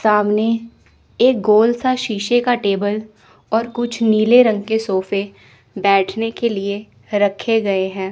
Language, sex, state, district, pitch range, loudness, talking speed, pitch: Hindi, female, Chandigarh, Chandigarh, 200-230 Hz, -17 LUFS, 140 wpm, 215 Hz